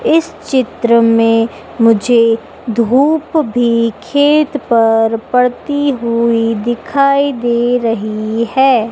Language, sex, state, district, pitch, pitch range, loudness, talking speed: Hindi, female, Madhya Pradesh, Dhar, 235 Hz, 230-275 Hz, -13 LUFS, 95 wpm